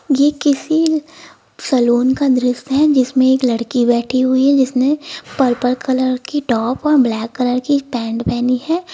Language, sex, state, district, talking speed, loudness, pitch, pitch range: Hindi, female, Uttar Pradesh, Lucknow, 160 wpm, -16 LUFS, 260 Hz, 250-290 Hz